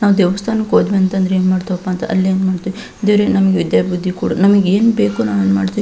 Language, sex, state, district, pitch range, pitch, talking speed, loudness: Kannada, female, Karnataka, Belgaum, 180-200 Hz, 190 Hz, 185 wpm, -15 LUFS